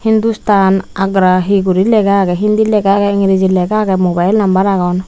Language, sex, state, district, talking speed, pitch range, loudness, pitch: Chakma, female, Tripura, Unakoti, 175 wpm, 185-210 Hz, -12 LUFS, 195 Hz